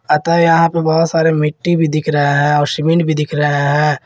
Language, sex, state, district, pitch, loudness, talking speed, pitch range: Hindi, male, Jharkhand, Garhwa, 155 Hz, -14 LUFS, 235 wpm, 150-165 Hz